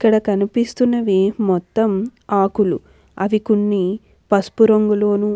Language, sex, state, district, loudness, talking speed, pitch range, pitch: Telugu, female, Andhra Pradesh, Anantapur, -17 LUFS, 90 wpm, 200-220 Hz, 210 Hz